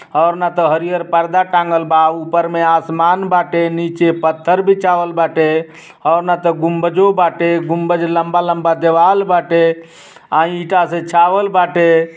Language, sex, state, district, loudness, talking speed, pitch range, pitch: Bhojpuri, male, Uttar Pradesh, Ghazipur, -14 LUFS, 145 wpm, 165-175 Hz, 170 Hz